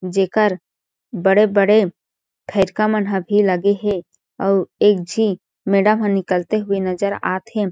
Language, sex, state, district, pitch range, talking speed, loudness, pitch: Chhattisgarhi, female, Chhattisgarh, Jashpur, 185-210 Hz, 140 wpm, -18 LUFS, 200 Hz